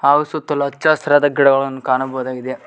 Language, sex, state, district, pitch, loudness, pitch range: Kannada, male, Karnataka, Koppal, 140 Hz, -16 LUFS, 130-145 Hz